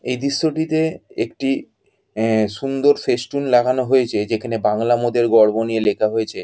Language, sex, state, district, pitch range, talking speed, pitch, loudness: Bengali, female, West Bengal, Jhargram, 110-135 Hz, 140 wpm, 120 Hz, -19 LUFS